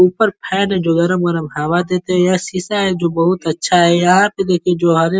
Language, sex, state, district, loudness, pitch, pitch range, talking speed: Hindi, male, Uttar Pradesh, Ghazipur, -15 LUFS, 180 Hz, 170-185 Hz, 255 wpm